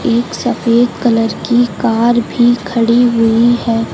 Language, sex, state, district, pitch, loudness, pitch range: Hindi, female, Uttar Pradesh, Lucknow, 235 Hz, -12 LUFS, 230-240 Hz